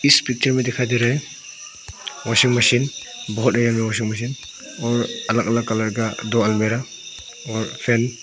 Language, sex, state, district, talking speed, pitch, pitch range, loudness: Hindi, male, Arunachal Pradesh, Papum Pare, 140 wpm, 120 Hz, 115-125 Hz, -20 LUFS